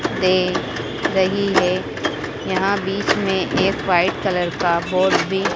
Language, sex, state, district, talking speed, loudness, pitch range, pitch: Hindi, female, Madhya Pradesh, Dhar, 130 wpm, -19 LUFS, 180-190 Hz, 185 Hz